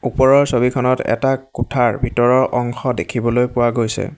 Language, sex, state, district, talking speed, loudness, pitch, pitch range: Assamese, male, Assam, Hailakandi, 130 wpm, -17 LUFS, 125 Hz, 120-130 Hz